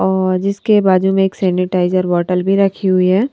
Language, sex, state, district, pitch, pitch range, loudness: Hindi, female, Punjab, Kapurthala, 190 Hz, 185-195 Hz, -14 LUFS